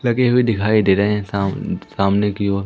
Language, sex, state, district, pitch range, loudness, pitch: Hindi, female, Madhya Pradesh, Umaria, 100-120 Hz, -18 LUFS, 105 Hz